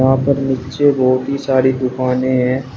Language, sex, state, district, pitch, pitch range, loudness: Hindi, male, Uttar Pradesh, Shamli, 130 Hz, 130-135 Hz, -16 LUFS